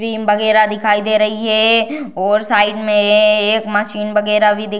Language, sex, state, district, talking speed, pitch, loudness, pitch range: Hindi, female, Bihar, Darbhanga, 185 wpm, 210 Hz, -14 LUFS, 210-215 Hz